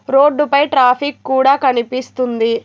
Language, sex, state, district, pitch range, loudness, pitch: Telugu, female, Telangana, Hyderabad, 250-280 Hz, -14 LUFS, 265 Hz